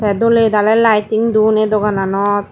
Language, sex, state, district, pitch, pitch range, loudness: Chakma, female, Tripura, Dhalai, 215 Hz, 205-220 Hz, -13 LUFS